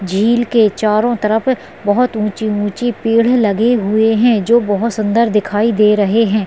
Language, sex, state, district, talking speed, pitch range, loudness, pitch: Hindi, female, Bihar, Jamui, 155 wpm, 210-235 Hz, -14 LUFS, 220 Hz